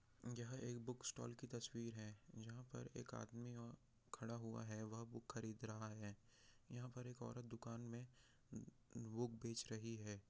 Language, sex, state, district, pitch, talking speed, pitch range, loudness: Hindi, male, Bihar, Jahanabad, 115 Hz, 180 wpm, 110-120 Hz, -53 LUFS